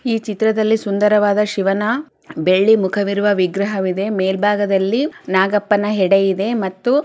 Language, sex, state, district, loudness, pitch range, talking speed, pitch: Kannada, female, Karnataka, Chamarajanagar, -17 LUFS, 195-215 Hz, 110 wpm, 205 Hz